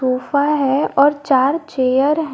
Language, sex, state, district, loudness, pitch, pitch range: Hindi, female, Jharkhand, Garhwa, -16 LUFS, 280 Hz, 260-295 Hz